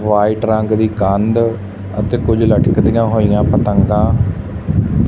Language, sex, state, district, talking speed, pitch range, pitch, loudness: Punjabi, male, Punjab, Fazilka, 105 wpm, 100-115 Hz, 105 Hz, -14 LUFS